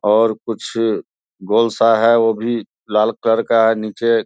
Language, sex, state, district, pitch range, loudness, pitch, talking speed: Hindi, male, Bihar, Saharsa, 110-115 Hz, -16 LUFS, 115 Hz, 170 wpm